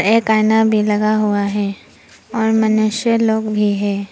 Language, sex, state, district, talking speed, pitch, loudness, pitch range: Hindi, female, Arunachal Pradesh, Papum Pare, 160 wpm, 215 Hz, -16 LUFS, 205-220 Hz